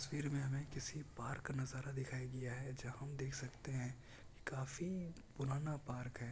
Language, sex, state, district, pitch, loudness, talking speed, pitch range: Hindi, male, Bihar, Kishanganj, 130 Hz, -46 LUFS, 190 wpm, 125-140 Hz